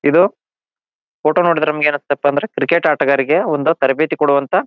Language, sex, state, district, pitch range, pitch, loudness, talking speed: Kannada, male, Karnataka, Bijapur, 145-160 Hz, 150 Hz, -15 LUFS, 165 wpm